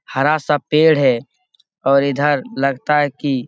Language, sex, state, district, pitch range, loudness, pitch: Hindi, male, Bihar, Jamui, 135-150 Hz, -16 LUFS, 145 Hz